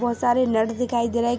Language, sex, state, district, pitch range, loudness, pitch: Hindi, female, Jharkhand, Sahebganj, 235-245 Hz, -22 LUFS, 240 Hz